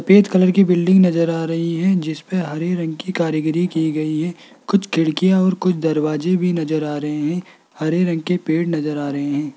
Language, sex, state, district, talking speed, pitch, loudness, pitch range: Hindi, male, Rajasthan, Jaipur, 215 wpm, 165 Hz, -18 LUFS, 155-180 Hz